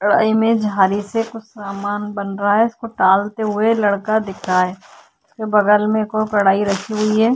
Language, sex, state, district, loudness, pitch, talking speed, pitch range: Hindi, female, Uttarakhand, Tehri Garhwal, -17 LUFS, 210 Hz, 195 wpm, 200-220 Hz